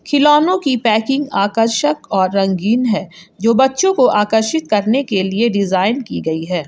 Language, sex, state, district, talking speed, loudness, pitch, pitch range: Hindi, female, Jharkhand, Garhwa, 160 wpm, -15 LUFS, 220 Hz, 195-270 Hz